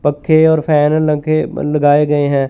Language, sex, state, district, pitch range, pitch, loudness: Hindi, male, Chandigarh, Chandigarh, 145-155 Hz, 150 Hz, -13 LUFS